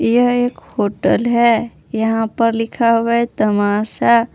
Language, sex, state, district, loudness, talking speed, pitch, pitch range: Hindi, female, Jharkhand, Palamu, -16 LUFS, 140 wpm, 230 Hz, 220-235 Hz